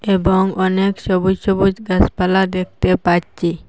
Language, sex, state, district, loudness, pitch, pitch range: Bengali, female, Assam, Hailakandi, -16 LUFS, 190 Hz, 180-190 Hz